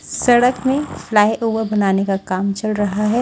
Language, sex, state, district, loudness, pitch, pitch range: Hindi, female, Maharashtra, Washim, -17 LUFS, 210 Hz, 200-240 Hz